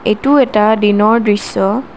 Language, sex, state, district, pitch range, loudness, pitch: Assamese, female, Assam, Kamrup Metropolitan, 210-240 Hz, -12 LUFS, 215 Hz